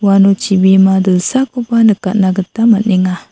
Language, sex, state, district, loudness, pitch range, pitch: Garo, female, Meghalaya, South Garo Hills, -11 LUFS, 190-220 Hz, 195 Hz